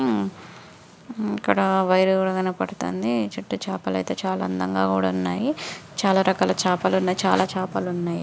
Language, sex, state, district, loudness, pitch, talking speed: Telugu, female, Andhra Pradesh, Srikakulam, -23 LUFS, 180 Hz, 110 wpm